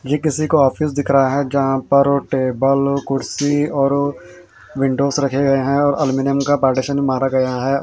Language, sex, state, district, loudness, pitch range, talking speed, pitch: Hindi, male, Haryana, Jhajjar, -17 LUFS, 135-145 Hz, 200 wpm, 140 Hz